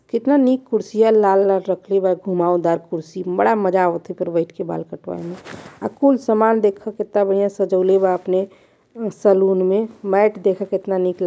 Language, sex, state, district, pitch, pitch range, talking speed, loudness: Hindi, male, Uttar Pradesh, Varanasi, 195 Hz, 185-215 Hz, 190 wpm, -18 LUFS